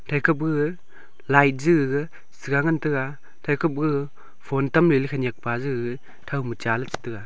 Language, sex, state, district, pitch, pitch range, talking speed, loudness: Wancho, male, Arunachal Pradesh, Longding, 140 Hz, 130-150 Hz, 190 wpm, -23 LUFS